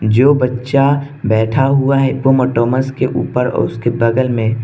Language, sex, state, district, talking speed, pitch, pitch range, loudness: Hindi, male, Arunachal Pradesh, Lower Dibang Valley, 170 wpm, 130 Hz, 115-135 Hz, -14 LUFS